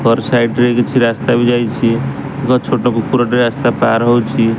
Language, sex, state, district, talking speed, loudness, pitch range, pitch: Odia, male, Odisha, Sambalpur, 170 wpm, -14 LUFS, 115-120 Hz, 120 Hz